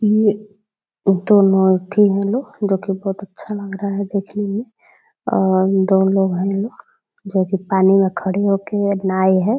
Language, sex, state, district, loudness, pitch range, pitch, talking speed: Hindi, female, Bihar, Purnia, -18 LUFS, 190-205 Hz, 195 Hz, 170 wpm